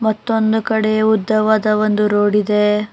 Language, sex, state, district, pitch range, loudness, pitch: Kannada, female, Karnataka, Bangalore, 210-220 Hz, -15 LUFS, 215 Hz